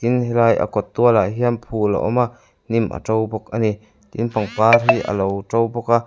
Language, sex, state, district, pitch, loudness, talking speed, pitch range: Mizo, male, Mizoram, Aizawl, 115 Hz, -19 LUFS, 235 wpm, 105-120 Hz